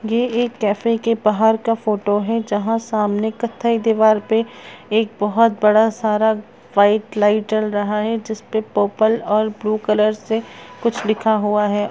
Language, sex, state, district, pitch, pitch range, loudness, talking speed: Hindi, female, Chhattisgarh, Raigarh, 220 Hz, 210-225 Hz, -18 LUFS, 160 wpm